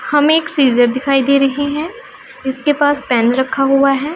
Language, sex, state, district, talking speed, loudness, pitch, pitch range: Hindi, female, Punjab, Pathankot, 185 wpm, -14 LUFS, 275 Hz, 265-295 Hz